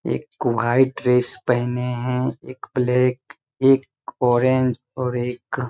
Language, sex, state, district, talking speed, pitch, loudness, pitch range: Hindi, male, Jharkhand, Sahebganj, 115 wpm, 125 Hz, -21 LUFS, 125-130 Hz